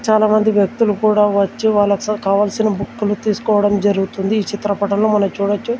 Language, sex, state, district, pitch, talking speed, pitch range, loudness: Telugu, male, Telangana, Komaram Bheem, 205 Hz, 135 wpm, 200-215 Hz, -16 LUFS